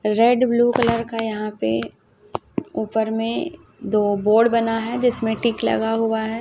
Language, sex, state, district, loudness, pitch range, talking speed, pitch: Hindi, female, Chhattisgarh, Raipur, -20 LUFS, 215-230 Hz, 160 wpm, 225 Hz